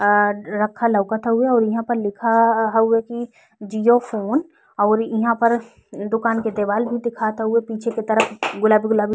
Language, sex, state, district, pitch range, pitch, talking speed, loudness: Bhojpuri, female, Uttar Pradesh, Ghazipur, 215-230 Hz, 225 Hz, 170 wpm, -19 LUFS